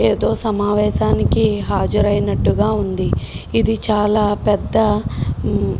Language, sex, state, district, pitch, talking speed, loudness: Telugu, female, Telangana, Karimnagar, 205 Hz, 95 wpm, -17 LUFS